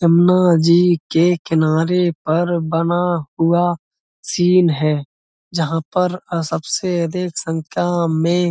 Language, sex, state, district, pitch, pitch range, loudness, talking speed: Hindi, male, Uttar Pradesh, Budaun, 170 Hz, 165-175 Hz, -17 LUFS, 120 wpm